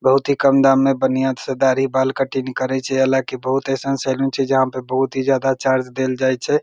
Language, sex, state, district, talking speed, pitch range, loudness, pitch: Maithili, male, Bihar, Begusarai, 235 wpm, 130-135 Hz, -18 LUFS, 135 Hz